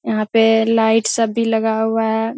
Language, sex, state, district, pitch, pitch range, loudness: Hindi, female, Bihar, Purnia, 225 Hz, 220-225 Hz, -16 LUFS